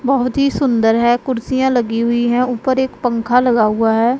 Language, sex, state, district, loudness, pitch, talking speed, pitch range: Hindi, female, Punjab, Pathankot, -15 LUFS, 245 Hz, 200 wpm, 230-260 Hz